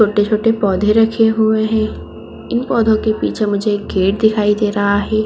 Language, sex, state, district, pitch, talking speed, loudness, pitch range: Hindi, female, Chhattisgarh, Bastar, 215 Hz, 170 wpm, -15 LUFS, 205-220 Hz